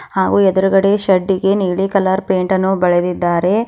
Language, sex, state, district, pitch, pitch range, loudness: Kannada, female, Karnataka, Bidar, 190 Hz, 185-195 Hz, -15 LUFS